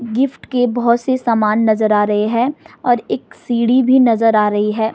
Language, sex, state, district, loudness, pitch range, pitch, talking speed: Hindi, female, Himachal Pradesh, Shimla, -15 LUFS, 220-250 Hz, 235 Hz, 205 wpm